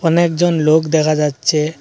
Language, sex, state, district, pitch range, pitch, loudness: Bengali, male, Assam, Hailakandi, 150-165 Hz, 155 Hz, -15 LUFS